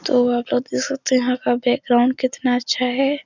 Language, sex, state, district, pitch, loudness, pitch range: Hindi, female, Uttar Pradesh, Etah, 250 Hz, -19 LUFS, 245-265 Hz